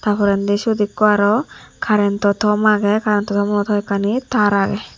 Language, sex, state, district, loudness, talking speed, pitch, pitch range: Chakma, female, Tripura, Dhalai, -17 LUFS, 155 wpm, 205 Hz, 205-210 Hz